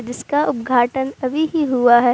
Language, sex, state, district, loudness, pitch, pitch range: Hindi, female, Uttar Pradesh, Jalaun, -18 LUFS, 255 Hz, 245-285 Hz